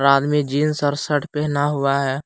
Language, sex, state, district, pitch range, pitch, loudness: Hindi, male, Jharkhand, Palamu, 140-150 Hz, 145 Hz, -20 LUFS